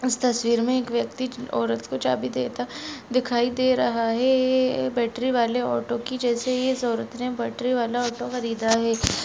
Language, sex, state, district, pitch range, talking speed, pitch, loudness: Hindi, female, Rajasthan, Nagaur, 230-255 Hz, 180 wpm, 240 Hz, -24 LUFS